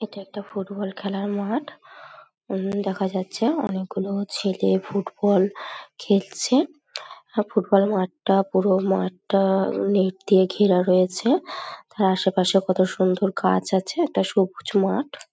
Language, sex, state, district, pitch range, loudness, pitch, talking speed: Bengali, female, West Bengal, North 24 Parganas, 190-205 Hz, -22 LUFS, 195 Hz, 120 wpm